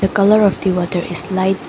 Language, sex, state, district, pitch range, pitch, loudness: English, female, Arunachal Pradesh, Lower Dibang Valley, 180-200 Hz, 190 Hz, -16 LUFS